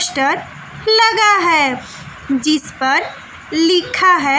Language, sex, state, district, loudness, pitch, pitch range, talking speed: Hindi, female, Bihar, West Champaran, -14 LUFS, 325 Hz, 275-370 Hz, 95 wpm